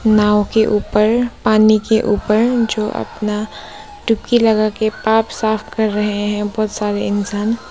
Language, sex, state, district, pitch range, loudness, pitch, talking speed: Hindi, female, Arunachal Pradesh, Papum Pare, 210-220 Hz, -16 LUFS, 215 Hz, 140 wpm